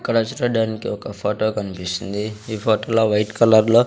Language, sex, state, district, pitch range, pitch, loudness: Telugu, male, Andhra Pradesh, Sri Satya Sai, 105-115 Hz, 110 Hz, -20 LUFS